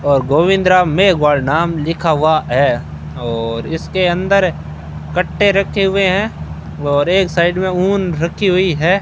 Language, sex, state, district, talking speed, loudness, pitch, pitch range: Hindi, male, Rajasthan, Bikaner, 155 wpm, -14 LUFS, 170 Hz, 140-185 Hz